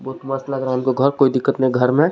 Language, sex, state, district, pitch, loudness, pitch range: Hindi, male, Jharkhand, Garhwa, 135 Hz, -18 LUFS, 130-140 Hz